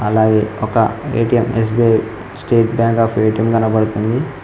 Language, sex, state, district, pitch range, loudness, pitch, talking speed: Telugu, male, Telangana, Mahabubabad, 110-115 Hz, -15 LUFS, 115 Hz, 120 wpm